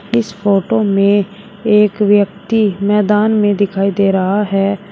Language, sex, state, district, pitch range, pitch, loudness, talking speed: Hindi, female, Uttar Pradesh, Shamli, 200-210 Hz, 205 Hz, -14 LUFS, 135 wpm